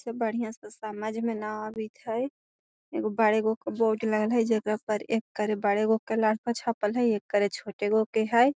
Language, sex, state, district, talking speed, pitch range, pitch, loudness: Magahi, female, Bihar, Gaya, 180 wpm, 215-230 Hz, 220 Hz, -28 LUFS